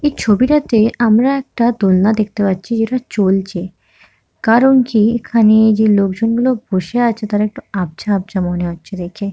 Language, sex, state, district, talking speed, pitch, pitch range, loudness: Bengali, female, West Bengal, Kolkata, 160 wpm, 215 Hz, 195-235 Hz, -14 LUFS